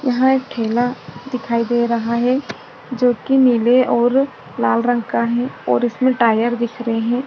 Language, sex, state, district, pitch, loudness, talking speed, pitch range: Hindi, female, Maharashtra, Chandrapur, 240 Hz, -17 LUFS, 165 wpm, 235-255 Hz